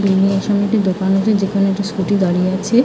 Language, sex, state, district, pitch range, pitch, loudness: Bengali, female, West Bengal, North 24 Parganas, 190-205 Hz, 195 Hz, -16 LUFS